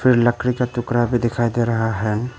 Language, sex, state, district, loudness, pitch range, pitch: Hindi, male, Arunachal Pradesh, Papum Pare, -20 LUFS, 115-120 Hz, 120 Hz